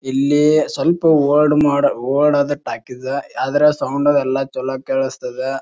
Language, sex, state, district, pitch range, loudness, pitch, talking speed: Kannada, male, Karnataka, Bijapur, 135-150 Hz, -17 LUFS, 140 Hz, 140 wpm